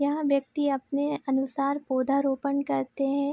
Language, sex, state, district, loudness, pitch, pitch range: Hindi, female, Bihar, Araria, -27 LUFS, 280 Hz, 270-285 Hz